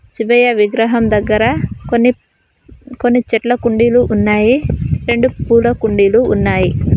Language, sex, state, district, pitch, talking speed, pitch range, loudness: Telugu, female, Telangana, Mahabubabad, 235 Hz, 105 wpm, 220-245 Hz, -13 LUFS